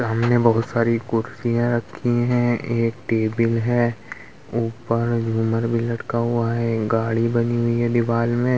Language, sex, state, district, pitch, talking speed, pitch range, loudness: Hindi, male, Bihar, Vaishali, 115 Hz, 145 wpm, 115-120 Hz, -21 LUFS